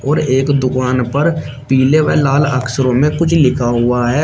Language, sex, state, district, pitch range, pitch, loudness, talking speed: Hindi, male, Uttar Pradesh, Shamli, 125-150 Hz, 135 Hz, -14 LUFS, 185 wpm